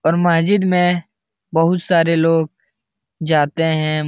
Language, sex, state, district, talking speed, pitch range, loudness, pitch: Hindi, male, Bihar, Jahanabad, 115 wpm, 160-175 Hz, -16 LUFS, 165 Hz